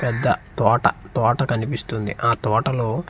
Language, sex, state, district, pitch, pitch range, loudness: Telugu, male, Andhra Pradesh, Manyam, 120 Hz, 110-130 Hz, -21 LUFS